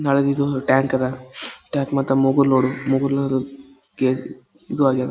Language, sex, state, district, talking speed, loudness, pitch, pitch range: Kannada, male, Karnataka, Gulbarga, 130 wpm, -20 LUFS, 135 Hz, 130-140 Hz